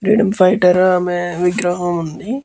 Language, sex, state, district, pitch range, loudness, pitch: Telugu, male, Andhra Pradesh, Guntur, 175-200 Hz, -15 LUFS, 180 Hz